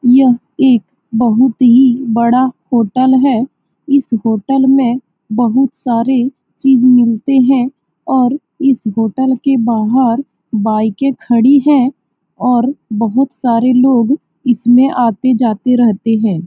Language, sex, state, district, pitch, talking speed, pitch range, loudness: Hindi, female, Bihar, Saran, 250 Hz, 115 wpm, 230-265 Hz, -12 LUFS